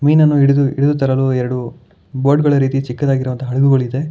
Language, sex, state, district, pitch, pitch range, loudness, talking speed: Kannada, male, Karnataka, Bangalore, 135 Hz, 130-140 Hz, -15 LUFS, 160 wpm